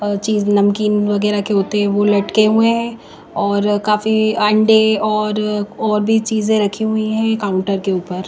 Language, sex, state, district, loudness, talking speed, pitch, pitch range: Hindi, female, Himachal Pradesh, Shimla, -16 LUFS, 175 wpm, 210 Hz, 205-220 Hz